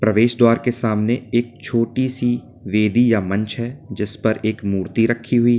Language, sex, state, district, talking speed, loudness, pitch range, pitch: Hindi, male, Uttar Pradesh, Lalitpur, 180 wpm, -19 LUFS, 110-120 Hz, 115 Hz